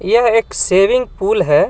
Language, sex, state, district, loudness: Hindi, male, Jharkhand, Ranchi, -14 LUFS